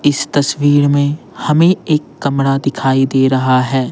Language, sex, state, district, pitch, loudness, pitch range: Hindi, male, Bihar, Patna, 140 Hz, -14 LUFS, 135-145 Hz